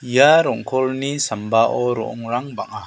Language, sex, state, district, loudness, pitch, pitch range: Garo, male, Meghalaya, South Garo Hills, -18 LUFS, 125 Hz, 115-140 Hz